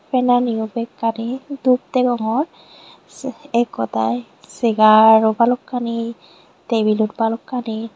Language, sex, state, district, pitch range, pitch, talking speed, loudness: Chakma, female, Tripura, Unakoti, 220-245 Hz, 230 Hz, 90 wpm, -18 LUFS